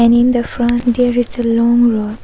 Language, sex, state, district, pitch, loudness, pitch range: English, female, Arunachal Pradesh, Papum Pare, 240 Hz, -14 LUFS, 235-245 Hz